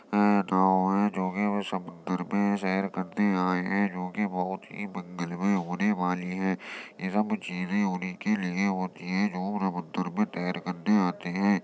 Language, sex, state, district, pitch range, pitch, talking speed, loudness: Hindi, male, Uttar Pradesh, Jyotiba Phule Nagar, 90-100 Hz, 95 Hz, 180 wpm, -28 LUFS